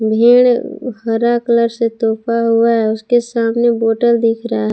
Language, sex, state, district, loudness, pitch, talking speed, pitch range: Hindi, female, Jharkhand, Palamu, -14 LUFS, 230 Hz, 165 wpm, 225-240 Hz